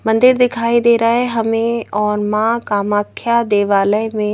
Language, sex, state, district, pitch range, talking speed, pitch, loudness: Hindi, female, Madhya Pradesh, Bhopal, 210-235 Hz, 150 wpm, 225 Hz, -15 LUFS